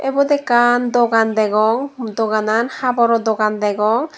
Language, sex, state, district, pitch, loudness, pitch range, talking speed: Chakma, female, Tripura, Dhalai, 230 Hz, -16 LUFS, 215-250 Hz, 115 wpm